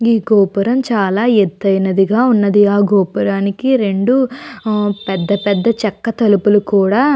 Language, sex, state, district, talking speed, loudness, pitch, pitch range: Telugu, female, Andhra Pradesh, Chittoor, 125 wpm, -14 LUFS, 205 Hz, 200-230 Hz